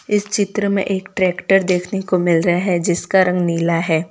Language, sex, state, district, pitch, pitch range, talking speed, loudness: Hindi, female, Gujarat, Valsad, 185 Hz, 175-195 Hz, 205 wpm, -17 LUFS